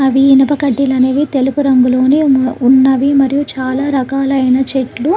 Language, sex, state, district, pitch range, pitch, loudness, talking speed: Telugu, female, Andhra Pradesh, Krishna, 260-275 Hz, 270 Hz, -12 LUFS, 140 wpm